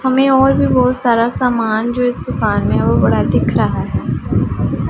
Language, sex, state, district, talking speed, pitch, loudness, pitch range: Hindi, female, Punjab, Pathankot, 195 wpm, 250 Hz, -15 LUFS, 235-260 Hz